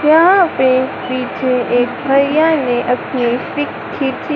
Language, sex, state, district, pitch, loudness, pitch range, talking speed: Hindi, female, Madhya Pradesh, Dhar, 260 Hz, -15 LUFS, 250-300 Hz, 125 wpm